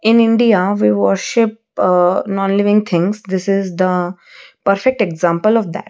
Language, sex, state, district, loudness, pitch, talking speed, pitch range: English, female, Odisha, Malkangiri, -15 LUFS, 195 Hz, 140 wpm, 180-215 Hz